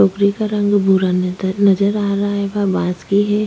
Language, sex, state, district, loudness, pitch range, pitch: Hindi, female, Chhattisgarh, Sukma, -16 LUFS, 190-205 Hz, 200 Hz